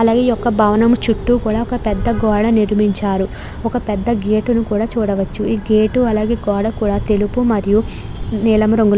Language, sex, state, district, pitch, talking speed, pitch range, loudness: Telugu, female, Andhra Pradesh, Krishna, 215 Hz, 175 wpm, 210-230 Hz, -16 LUFS